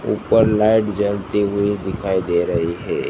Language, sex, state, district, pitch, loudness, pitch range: Hindi, male, Gujarat, Gandhinagar, 100 Hz, -18 LUFS, 95-110 Hz